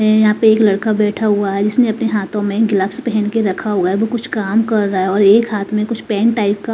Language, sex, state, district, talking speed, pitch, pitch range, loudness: Hindi, female, Himachal Pradesh, Shimla, 285 wpm, 215 Hz, 205-225 Hz, -15 LUFS